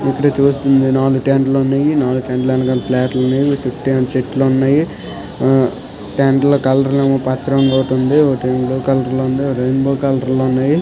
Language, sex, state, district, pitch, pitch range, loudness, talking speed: Telugu, male, Andhra Pradesh, Srikakulam, 135 Hz, 130-135 Hz, -15 LUFS, 190 wpm